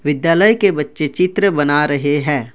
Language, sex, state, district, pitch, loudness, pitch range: Hindi, male, Assam, Kamrup Metropolitan, 150 Hz, -15 LUFS, 145-180 Hz